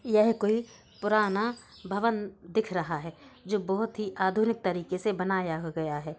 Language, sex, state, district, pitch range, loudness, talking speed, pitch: Hindi, female, Bihar, Gaya, 175-215 Hz, -29 LUFS, 155 wpm, 200 Hz